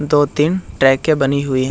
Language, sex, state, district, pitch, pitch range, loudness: Hindi, male, Bihar, Jahanabad, 145 Hz, 135-150 Hz, -16 LUFS